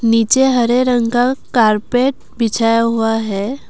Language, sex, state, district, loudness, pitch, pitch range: Hindi, female, Assam, Kamrup Metropolitan, -15 LUFS, 230 Hz, 225-250 Hz